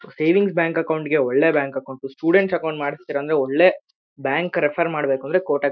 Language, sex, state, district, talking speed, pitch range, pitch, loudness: Kannada, male, Karnataka, Shimoga, 155 wpm, 140-175 Hz, 155 Hz, -20 LUFS